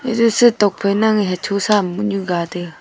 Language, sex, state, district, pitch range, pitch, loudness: Wancho, female, Arunachal Pradesh, Longding, 180-220 Hz, 200 Hz, -17 LUFS